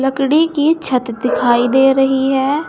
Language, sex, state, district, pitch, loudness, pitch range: Hindi, female, Uttar Pradesh, Saharanpur, 270 Hz, -14 LUFS, 255-285 Hz